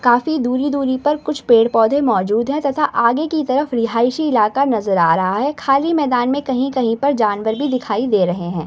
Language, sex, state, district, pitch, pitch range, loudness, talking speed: Hindi, female, Bihar, Samastipur, 255 Hz, 225-285 Hz, -17 LUFS, 195 wpm